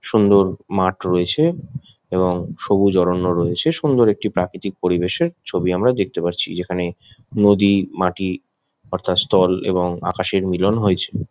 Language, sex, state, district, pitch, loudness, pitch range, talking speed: Bengali, male, West Bengal, Jhargram, 95 Hz, -18 LUFS, 90-105 Hz, 140 wpm